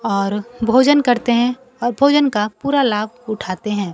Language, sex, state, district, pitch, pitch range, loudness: Hindi, female, Bihar, Kaimur, 240 Hz, 210-255 Hz, -17 LUFS